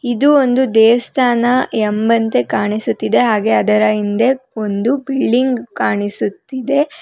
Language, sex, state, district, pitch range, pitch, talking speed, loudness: Kannada, female, Karnataka, Bangalore, 215-260 Hz, 240 Hz, 95 wpm, -15 LUFS